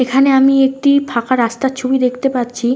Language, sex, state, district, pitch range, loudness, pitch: Bengali, female, West Bengal, North 24 Parganas, 245-270 Hz, -14 LUFS, 260 Hz